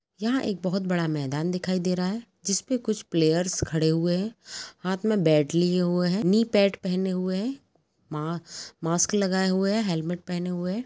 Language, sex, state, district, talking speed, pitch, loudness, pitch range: Hindi, female, Chhattisgarh, Kabirdham, 195 wpm, 185 Hz, -26 LUFS, 170-200 Hz